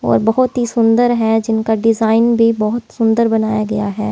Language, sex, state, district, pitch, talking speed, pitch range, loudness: Hindi, female, Haryana, Jhajjar, 225 Hz, 190 wpm, 220-230 Hz, -14 LUFS